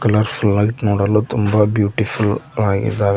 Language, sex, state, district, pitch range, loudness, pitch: Kannada, male, Karnataka, Koppal, 100-110 Hz, -17 LUFS, 105 Hz